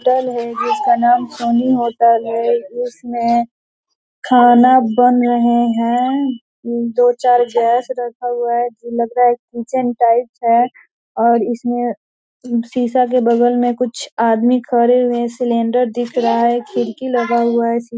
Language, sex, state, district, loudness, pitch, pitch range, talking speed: Hindi, female, Bihar, East Champaran, -15 LUFS, 240 Hz, 235-250 Hz, 145 wpm